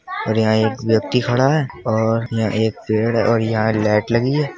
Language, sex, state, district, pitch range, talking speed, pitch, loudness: Hindi, male, Uttar Pradesh, Budaun, 110-120 Hz, 210 wpm, 110 Hz, -18 LUFS